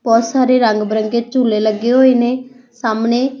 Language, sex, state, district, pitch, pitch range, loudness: Punjabi, female, Punjab, Fazilka, 240 Hz, 225-255 Hz, -15 LUFS